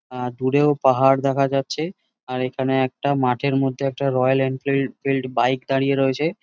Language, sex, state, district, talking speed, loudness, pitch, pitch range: Bengali, male, West Bengal, Jhargram, 160 wpm, -21 LUFS, 135 Hz, 130-140 Hz